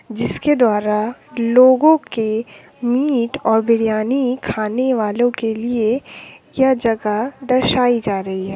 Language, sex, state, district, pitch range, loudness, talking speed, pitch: Hindi, female, Bihar, Sitamarhi, 215-255 Hz, -17 LUFS, 120 wpm, 235 Hz